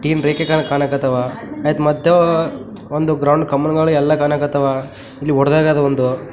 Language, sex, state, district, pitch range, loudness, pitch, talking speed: Kannada, male, Karnataka, Raichur, 140-155 Hz, -16 LUFS, 150 Hz, 150 wpm